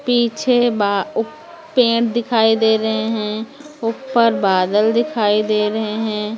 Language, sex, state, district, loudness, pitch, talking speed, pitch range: Hindi, female, Maharashtra, Mumbai Suburban, -17 LUFS, 225 Hz, 130 wpm, 215-235 Hz